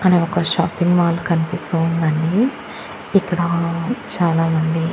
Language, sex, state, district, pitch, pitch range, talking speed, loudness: Telugu, female, Andhra Pradesh, Annamaya, 170 Hz, 165-175 Hz, 95 wpm, -18 LUFS